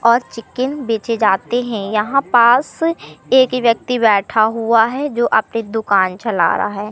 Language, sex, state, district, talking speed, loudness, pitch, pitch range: Hindi, male, Madhya Pradesh, Katni, 155 wpm, -16 LUFS, 230 Hz, 220-250 Hz